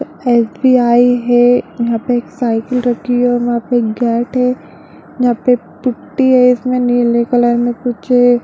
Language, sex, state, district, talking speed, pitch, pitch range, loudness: Hindi, female, Bihar, Darbhanga, 165 wpm, 245 Hz, 240-250 Hz, -13 LUFS